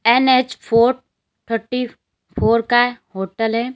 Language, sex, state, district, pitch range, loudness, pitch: Hindi, female, Uttar Pradesh, Lalitpur, 230-250 Hz, -18 LUFS, 235 Hz